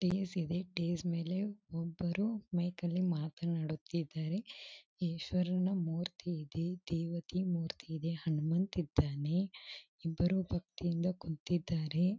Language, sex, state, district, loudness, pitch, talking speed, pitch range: Kannada, female, Karnataka, Belgaum, -37 LUFS, 175 Hz, 90 wpm, 165-180 Hz